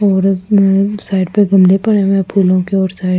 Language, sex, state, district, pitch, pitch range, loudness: Hindi, female, Delhi, New Delhi, 195 Hz, 190-200 Hz, -12 LUFS